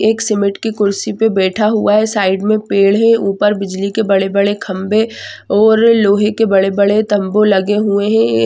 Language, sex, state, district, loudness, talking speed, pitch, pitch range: Hindi, female, Andhra Pradesh, Chittoor, -13 LUFS, 190 wpm, 205 Hz, 195-215 Hz